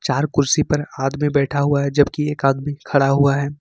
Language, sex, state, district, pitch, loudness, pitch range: Hindi, male, Jharkhand, Ranchi, 140 Hz, -18 LUFS, 140-145 Hz